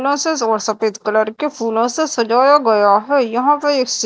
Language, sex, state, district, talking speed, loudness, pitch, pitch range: Hindi, female, Madhya Pradesh, Dhar, 175 wpm, -15 LUFS, 240 Hz, 220-285 Hz